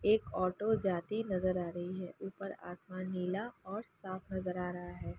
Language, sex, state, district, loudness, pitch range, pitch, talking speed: Hindi, female, Uttar Pradesh, Jalaun, -38 LUFS, 180-195 Hz, 185 Hz, 185 wpm